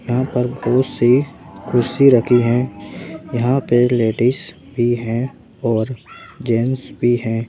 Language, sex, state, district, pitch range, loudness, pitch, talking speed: Hindi, male, Madhya Pradesh, Bhopal, 120-130 Hz, -17 LUFS, 120 Hz, 130 wpm